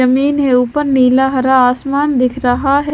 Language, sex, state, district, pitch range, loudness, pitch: Hindi, female, Himachal Pradesh, Shimla, 255-280 Hz, -13 LUFS, 265 Hz